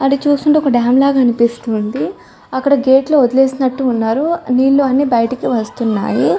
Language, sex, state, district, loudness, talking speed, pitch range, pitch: Telugu, female, Telangana, Karimnagar, -14 LUFS, 130 wpm, 235-275 Hz, 260 Hz